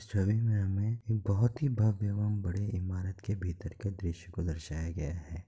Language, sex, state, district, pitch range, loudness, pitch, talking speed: Hindi, male, Bihar, Kishanganj, 90-105 Hz, -33 LUFS, 100 Hz, 185 wpm